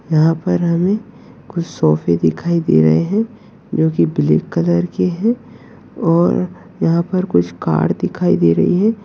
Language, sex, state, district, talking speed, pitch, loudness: Hindi, male, Uttarakhand, Uttarkashi, 160 wpm, 115 Hz, -16 LUFS